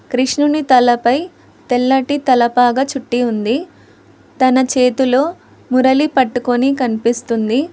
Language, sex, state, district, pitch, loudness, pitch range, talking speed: Telugu, female, Telangana, Hyderabad, 255 Hz, -15 LUFS, 245-270 Hz, 85 wpm